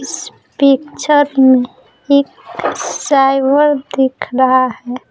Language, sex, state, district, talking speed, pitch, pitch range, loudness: Hindi, female, Bihar, Patna, 105 wpm, 270 Hz, 260-285 Hz, -13 LUFS